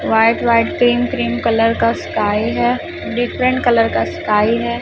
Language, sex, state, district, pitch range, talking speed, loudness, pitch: Hindi, male, Chhattisgarh, Raipur, 225-240 Hz, 160 wpm, -16 LUFS, 235 Hz